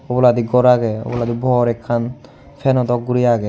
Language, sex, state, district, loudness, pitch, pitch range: Chakma, male, Tripura, Unakoti, -17 LUFS, 120 Hz, 120-125 Hz